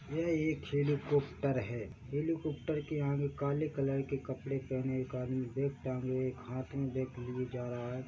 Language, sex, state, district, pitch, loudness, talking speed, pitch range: Hindi, male, Chhattisgarh, Bilaspur, 135 Hz, -36 LUFS, 170 wpm, 130-145 Hz